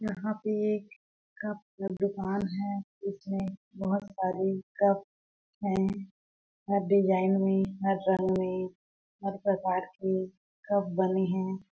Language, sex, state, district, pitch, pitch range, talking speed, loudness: Hindi, female, Chhattisgarh, Balrampur, 195 Hz, 190-200 Hz, 125 wpm, -30 LUFS